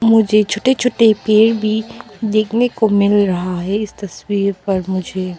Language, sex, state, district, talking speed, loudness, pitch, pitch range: Hindi, female, Arunachal Pradesh, Papum Pare, 155 wpm, -16 LUFS, 210 Hz, 195-220 Hz